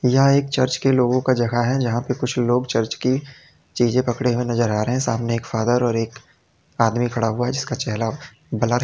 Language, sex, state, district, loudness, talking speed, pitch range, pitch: Hindi, male, Uttar Pradesh, Lalitpur, -21 LUFS, 215 wpm, 115-130 Hz, 120 Hz